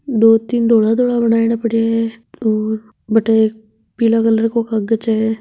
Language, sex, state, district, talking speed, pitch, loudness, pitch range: Marwari, male, Rajasthan, Nagaur, 165 wpm, 225 Hz, -16 LUFS, 220-230 Hz